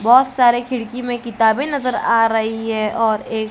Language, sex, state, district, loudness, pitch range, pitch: Hindi, female, Maharashtra, Gondia, -17 LUFS, 225-250 Hz, 230 Hz